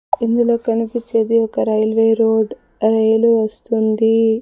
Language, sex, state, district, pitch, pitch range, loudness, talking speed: Telugu, female, Andhra Pradesh, Sri Satya Sai, 225 Hz, 220-230 Hz, -16 LUFS, 110 wpm